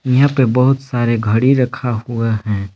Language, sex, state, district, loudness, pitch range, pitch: Hindi, male, Jharkhand, Palamu, -15 LUFS, 115-130 Hz, 120 Hz